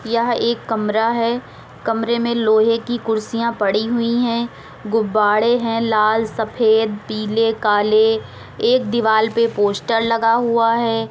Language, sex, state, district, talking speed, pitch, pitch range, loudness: Hindi, female, Uttar Pradesh, Etah, 135 wpm, 225 Hz, 220-235 Hz, -18 LUFS